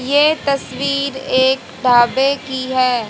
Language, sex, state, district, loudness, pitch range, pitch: Hindi, female, Haryana, Jhajjar, -16 LUFS, 255-275 Hz, 265 Hz